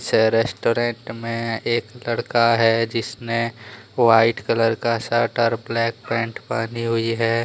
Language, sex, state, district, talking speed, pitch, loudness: Hindi, male, Jharkhand, Deoghar, 135 wpm, 115 Hz, -21 LUFS